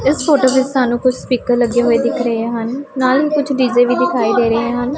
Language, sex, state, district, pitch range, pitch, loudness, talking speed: Punjabi, female, Punjab, Pathankot, 240-265 Hz, 255 Hz, -15 LUFS, 240 wpm